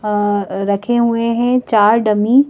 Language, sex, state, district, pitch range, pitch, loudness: Hindi, female, Madhya Pradesh, Bhopal, 205-240 Hz, 220 Hz, -15 LUFS